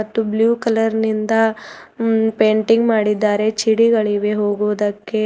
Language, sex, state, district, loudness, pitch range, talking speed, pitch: Kannada, female, Karnataka, Bidar, -17 LUFS, 210-225 Hz, 100 wpm, 220 Hz